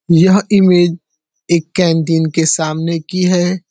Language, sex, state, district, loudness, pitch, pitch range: Hindi, male, Uttar Pradesh, Deoria, -13 LUFS, 170 Hz, 160-180 Hz